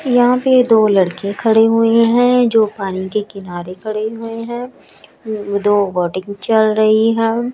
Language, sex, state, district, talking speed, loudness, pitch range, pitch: Hindi, female, Chhattisgarh, Raipur, 150 wpm, -15 LUFS, 200-230 Hz, 220 Hz